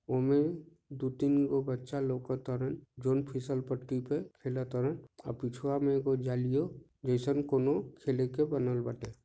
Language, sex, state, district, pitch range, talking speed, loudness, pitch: Bhojpuri, male, Jharkhand, Sahebganj, 125-140 Hz, 150 wpm, -33 LUFS, 135 Hz